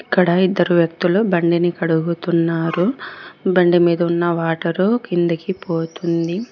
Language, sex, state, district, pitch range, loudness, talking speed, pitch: Telugu, female, Telangana, Mahabubabad, 170-185 Hz, -18 LUFS, 100 wpm, 175 Hz